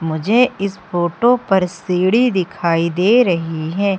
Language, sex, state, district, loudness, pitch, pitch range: Hindi, female, Madhya Pradesh, Umaria, -16 LUFS, 185 Hz, 170-220 Hz